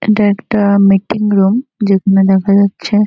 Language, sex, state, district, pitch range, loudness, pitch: Bengali, female, West Bengal, North 24 Parganas, 195-210 Hz, -12 LUFS, 200 Hz